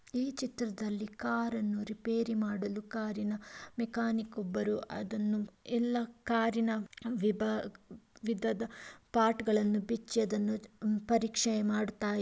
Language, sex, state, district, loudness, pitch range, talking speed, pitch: Kannada, female, Karnataka, Mysore, -34 LUFS, 210-230 Hz, 95 wpm, 220 Hz